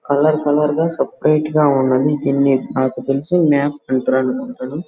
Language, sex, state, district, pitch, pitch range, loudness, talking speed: Telugu, male, Andhra Pradesh, Guntur, 140 Hz, 130-150 Hz, -17 LUFS, 135 wpm